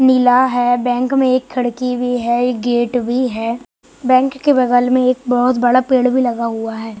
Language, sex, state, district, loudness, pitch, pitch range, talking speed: Hindi, male, Bihar, West Champaran, -15 LUFS, 245 Hz, 245-255 Hz, 205 wpm